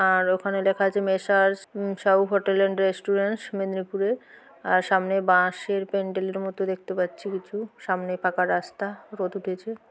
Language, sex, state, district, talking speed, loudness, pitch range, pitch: Bengali, female, West Bengal, Paschim Medinipur, 140 wpm, -25 LUFS, 185-200 Hz, 195 Hz